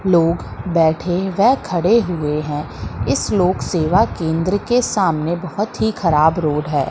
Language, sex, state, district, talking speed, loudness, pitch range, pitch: Hindi, female, Madhya Pradesh, Katni, 150 wpm, -18 LUFS, 155-195 Hz, 170 Hz